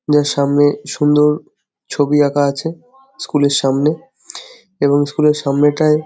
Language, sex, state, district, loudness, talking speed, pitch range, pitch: Bengali, male, West Bengal, Jhargram, -15 LUFS, 140 wpm, 145-160 Hz, 150 Hz